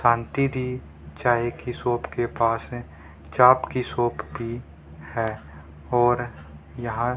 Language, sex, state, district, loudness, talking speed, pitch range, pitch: Hindi, male, Haryana, Rohtak, -24 LUFS, 135 wpm, 75-120 Hz, 120 Hz